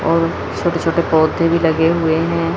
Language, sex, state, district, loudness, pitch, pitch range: Hindi, female, Chandigarh, Chandigarh, -16 LUFS, 165 Hz, 160-170 Hz